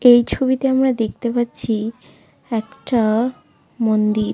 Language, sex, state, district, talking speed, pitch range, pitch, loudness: Bengali, female, West Bengal, Jalpaiguri, 95 wpm, 220-255 Hz, 235 Hz, -19 LUFS